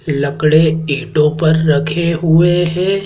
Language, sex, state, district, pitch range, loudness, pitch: Hindi, male, Madhya Pradesh, Dhar, 150-170 Hz, -13 LUFS, 160 Hz